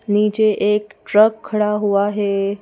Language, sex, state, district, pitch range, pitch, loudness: Hindi, female, Madhya Pradesh, Bhopal, 205-215 Hz, 210 Hz, -17 LUFS